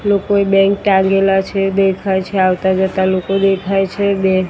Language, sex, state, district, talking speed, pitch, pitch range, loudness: Gujarati, female, Gujarat, Gandhinagar, 135 wpm, 195 Hz, 190-195 Hz, -14 LUFS